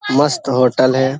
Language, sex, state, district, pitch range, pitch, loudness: Hindi, male, Bihar, Darbhanga, 130-140 Hz, 130 Hz, -15 LUFS